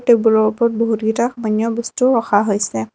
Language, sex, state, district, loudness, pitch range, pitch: Assamese, female, Assam, Kamrup Metropolitan, -17 LUFS, 215-235 Hz, 225 Hz